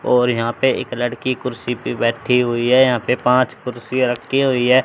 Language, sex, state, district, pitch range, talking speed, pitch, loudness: Hindi, male, Haryana, Charkhi Dadri, 120-130 Hz, 210 wpm, 125 Hz, -18 LUFS